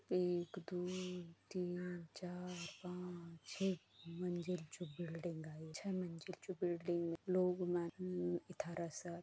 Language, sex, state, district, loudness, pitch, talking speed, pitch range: Chhattisgarhi, female, Chhattisgarh, Bastar, -44 LUFS, 175 Hz, 130 wpm, 170-180 Hz